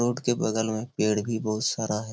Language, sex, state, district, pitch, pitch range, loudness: Hindi, male, Bihar, Lakhisarai, 110 Hz, 110-120 Hz, -27 LUFS